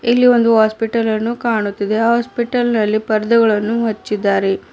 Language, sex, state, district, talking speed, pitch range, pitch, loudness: Kannada, female, Karnataka, Bidar, 100 wpm, 215-235 Hz, 225 Hz, -16 LUFS